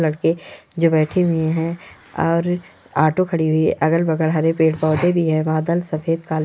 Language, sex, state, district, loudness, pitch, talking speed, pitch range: Hindi, female, Chhattisgarh, Korba, -19 LUFS, 165 Hz, 165 wpm, 155-170 Hz